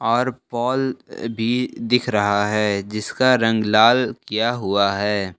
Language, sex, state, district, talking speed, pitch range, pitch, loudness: Hindi, male, Jharkhand, Ranchi, 135 wpm, 105-125 Hz, 115 Hz, -20 LUFS